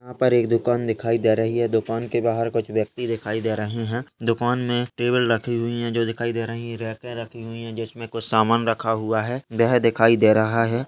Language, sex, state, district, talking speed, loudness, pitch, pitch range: Hindi, male, Rajasthan, Churu, 240 wpm, -22 LUFS, 115 Hz, 115-120 Hz